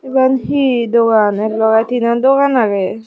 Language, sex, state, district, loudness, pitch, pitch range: Chakma, female, Tripura, Dhalai, -13 LUFS, 235 Hz, 220-260 Hz